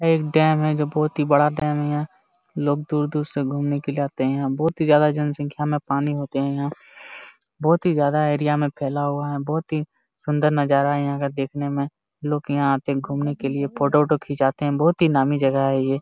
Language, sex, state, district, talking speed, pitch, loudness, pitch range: Hindi, male, Jharkhand, Jamtara, 230 wpm, 145 Hz, -22 LUFS, 140-150 Hz